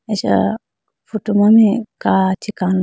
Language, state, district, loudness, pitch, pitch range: Idu Mishmi, Arunachal Pradesh, Lower Dibang Valley, -16 LUFS, 210 Hz, 190-215 Hz